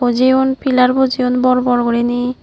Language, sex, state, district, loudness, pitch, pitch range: Chakma, female, Tripura, Unakoti, -14 LUFS, 250 Hz, 245-260 Hz